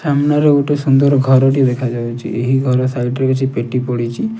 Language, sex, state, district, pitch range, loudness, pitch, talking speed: Odia, male, Odisha, Nuapada, 125-140 Hz, -15 LUFS, 130 Hz, 165 wpm